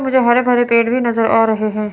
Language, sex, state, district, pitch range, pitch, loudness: Hindi, female, Chandigarh, Chandigarh, 225-245 Hz, 235 Hz, -14 LUFS